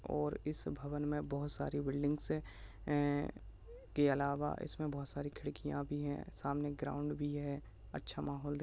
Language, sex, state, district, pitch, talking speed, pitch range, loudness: Hindi, male, Uttarakhand, Tehri Garhwal, 145 Hz, 175 wpm, 140-145 Hz, -38 LUFS